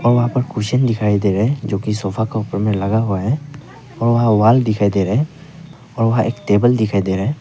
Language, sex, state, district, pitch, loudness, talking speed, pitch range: Hindi, male, Arunachal Pradesh, Papum Pare, 115 Hz, -17 LUFS, 250 wpm, 105-130 Hz